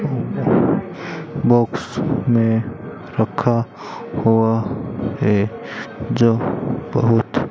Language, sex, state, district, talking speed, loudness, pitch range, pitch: Hindi, male, Rajasthan, Bikaner, 65 wpm, -19 LUFS, 110-120 Hz, 115 Hz